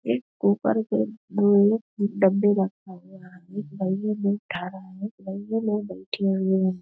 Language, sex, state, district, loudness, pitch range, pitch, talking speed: Hindi, female, Bihar, Darbhanga, -24 LUFS, 180-205 Hz, 190 Hz, 165 wpm